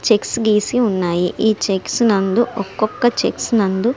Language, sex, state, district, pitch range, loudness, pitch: Telugu, female, Andhra Pradesh, Srikakulam, 195-235 Hz, -17 LUFS, 215 Hz